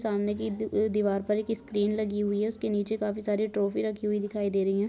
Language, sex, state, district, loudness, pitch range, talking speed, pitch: Hindi, female, Chhattisgarh, Korba, -29 LUFS, 205-215 Hz, 245 wpm, 210 Hz